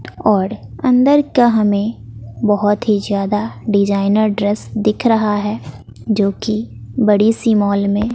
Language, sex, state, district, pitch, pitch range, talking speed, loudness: Hindi, female, Bihar, West Champaran, 210 Hz, 200-220 Hz, 135 wpm, -16 LUFS